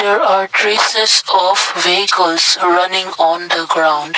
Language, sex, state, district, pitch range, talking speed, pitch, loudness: English, male, Assam, Kamrup Metropolitan, 165-195 Hz, 130 wpm, 185 Hz, -12 LUFS